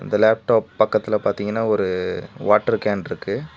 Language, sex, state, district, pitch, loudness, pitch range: Tamil, male, Tamil Nadu, Nilgiris, 105 Hz, -20 LUFS, 100-110 Hz